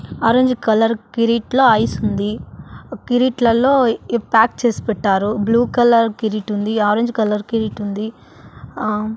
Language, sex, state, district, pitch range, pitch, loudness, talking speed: Telugu, female, Andhra Pradesh, Annamaya, 215-235 Hz, 225 Hz, -17 LUFS, 120 wpm